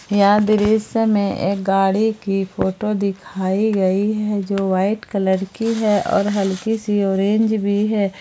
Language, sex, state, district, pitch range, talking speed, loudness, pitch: Hindi, female, Jharkhand, Palamu, 195-215 Hz, 155 wpm, -18 LUFS, 205 Hz